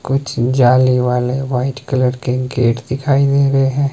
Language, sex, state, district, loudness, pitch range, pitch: Hindi, male, Himachal Pradesh, Shimla, -15 LUFS, 125-135 Hz, 130 Hz